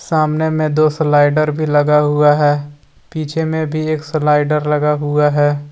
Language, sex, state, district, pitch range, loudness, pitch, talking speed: Hindi, male, Jharkhand, Deoghar, 145-155 Hz, -15 LUFS, 150 Hz, 170 wpm